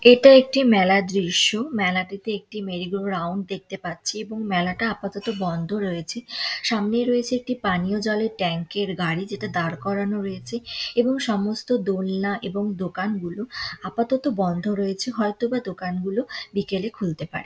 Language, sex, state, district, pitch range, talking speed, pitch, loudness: Bengali, female, West Bengal, Purulia, 185-225 Hz, 140 wpm, 200 Hz, -23 LUFS